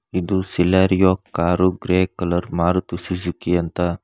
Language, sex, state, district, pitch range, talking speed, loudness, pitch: Kannada, male, Karnataka, Bangalore, 85-95 Hz, 120 wpm, -20 LUFS, 90 Hz